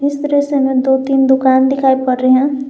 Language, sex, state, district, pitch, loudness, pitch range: Hindi, female, Jharkhand, Garhwa, 265 Hz, -13 LUFS, 265-280 Hz